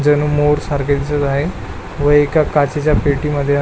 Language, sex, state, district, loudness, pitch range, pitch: Marathi, male, Maharashtra, Pune, -16 LUFS, 140-150 Hz, 145 Hz